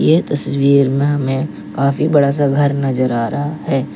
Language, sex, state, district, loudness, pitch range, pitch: Hindi, male, Uttar Pradesh, Lalitpur, -16 LUFS, 135-145 Hz, 140 Hz